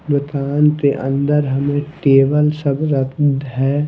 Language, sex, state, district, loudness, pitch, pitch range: Hindi, male, Himachal Pradesh, Shimla, -16 LUFS, 145 Hz, 135-150 Hz